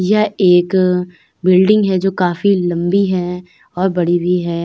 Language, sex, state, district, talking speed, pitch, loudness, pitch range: Hindi, female, Uttar Pradesh, Jyotiba Phule Nagar, 155 wpm, 180 Hz, -15 LUFS, 180-195 Hz